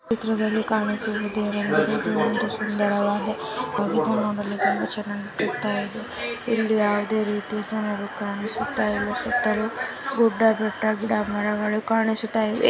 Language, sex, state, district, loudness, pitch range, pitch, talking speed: Kannada, female, Karnataka, Dharwad, -24 LUFS, 210-220 Hz, 215 Hz, 75 wpm